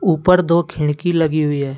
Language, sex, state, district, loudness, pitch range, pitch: Hindi, male, Jharkhand, Deoghar, -16 LUFS, 150-175 Hz, 160 Hz